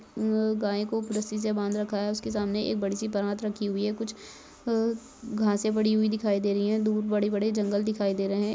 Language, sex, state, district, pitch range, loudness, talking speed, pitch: Hindi, male, Rajasthan, Churu, 205-215 Hz, -28 LUFS, 230 wpm, 210 Hz